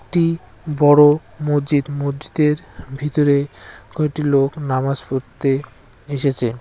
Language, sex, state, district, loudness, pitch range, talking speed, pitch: Bengali, male, West Bengal, Cooch Behar, -18 LUFS, 135-150 Hz, 80 wpm, 145 Hz